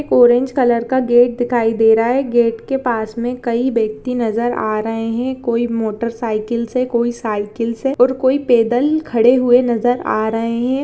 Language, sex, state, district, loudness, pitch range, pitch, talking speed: Hindi, female, Uttar Pradesh, Jyotiba Phule Nagar, -16 LUFS, 230-250 Hz, 240 Hz, 190 wpm